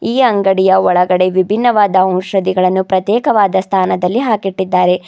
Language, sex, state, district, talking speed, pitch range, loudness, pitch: Kannada, female, Karnataka, Bidar, 95 wpm, 185-205 Hz, -13 LUFS, 190 Hz